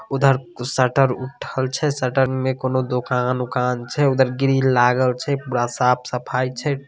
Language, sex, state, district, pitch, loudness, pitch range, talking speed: Maithili, male, Bihar, Samastipur, 130 Hz, -20 LUFS, 125-135 Hz, 140 wpm